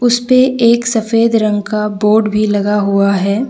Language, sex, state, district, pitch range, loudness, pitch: Hindi, female, Jharkhand, Deoghar, 205-235 Hz, -12 LUFS, 215 Hz